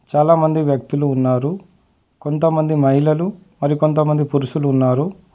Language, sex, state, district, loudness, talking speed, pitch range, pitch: Telugu, male, Telangana, Adilabad, -17 LUFS, 100 wpm, 140-160 Hz, 150 Hz